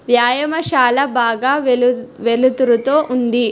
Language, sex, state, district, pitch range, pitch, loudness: Telugu, female, Telangana, Hyderabad, 240-265 Hz, 250 Hz, -15 LUFS